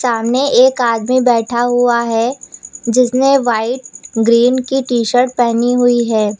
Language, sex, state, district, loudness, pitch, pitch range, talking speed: Hindi, female, Uttar Pradesh, Lucknow, -13 LUFS, 245 Hz, 235-255 Hz, 130 wpm